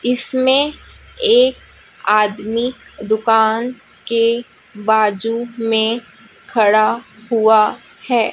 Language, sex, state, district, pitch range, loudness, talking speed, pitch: Hindi, female, Chhattisgarh, Raipur, 220-245 Hz, -16 LUFS, 70 wpm, 225 Hz